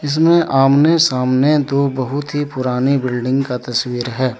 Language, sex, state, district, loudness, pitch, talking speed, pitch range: Hindi, male, Jharkhand, Deoghar, -16 LUFS, 135 Hz, 150 wpm, 125-145 Hz